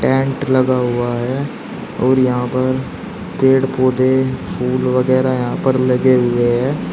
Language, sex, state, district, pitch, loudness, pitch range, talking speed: Hindi, male, Uttar Pradesh, Shamli, 130 Hz, -16 LUFS, 125-130 Hz, 140 wpm